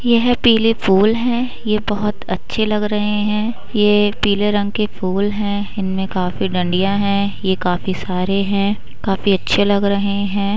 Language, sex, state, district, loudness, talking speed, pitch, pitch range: Hindi, female, Uttar Pradesh, Budaun, -17 LUFS, 175 wpm, 205 Hz, 195-210 Hz